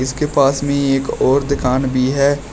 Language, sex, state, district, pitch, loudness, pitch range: Hindi, male, Uttar Pradesh, Shamli, 140 Hz, -16 LUFS, 130-140 Hz